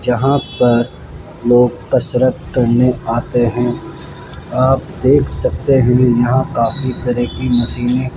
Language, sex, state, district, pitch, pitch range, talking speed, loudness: Hindi, male, Rajasthan, Jaipur, 125 Hz, 120-130 Hz, 125 wpm, -15 LUFS